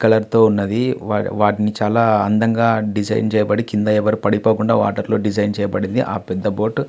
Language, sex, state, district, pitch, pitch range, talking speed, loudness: Telugu, male, Andhra Pradesh, Visakhapatnam, 105 Hz, 105-110 Hz, 175 wpm, -17 LUFS